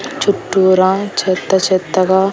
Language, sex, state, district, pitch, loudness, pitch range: Telugu, female, Andhra Pradesh, Annamaya, 190 Hz, -14 LUFS, 185-195 Hz